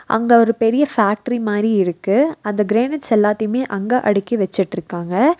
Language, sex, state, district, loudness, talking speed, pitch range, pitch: Tamil, female, Tamil Nadu, Nilgiris, -17 LUFS, 135 wpm, 200-245 Hz, 220 Hz